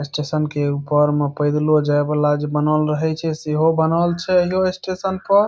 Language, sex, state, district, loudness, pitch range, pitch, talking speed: Maithili, male, Bihar, Saharsa, -19 LUFS, 150-170 Hz, 155 Hz, 185 wpm